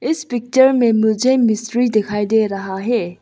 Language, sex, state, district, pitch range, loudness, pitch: Hindi, female, Arunachal Pradesh, Lower Dibang Valley, 210-245 Hz, -16 LUFS, 230 Hz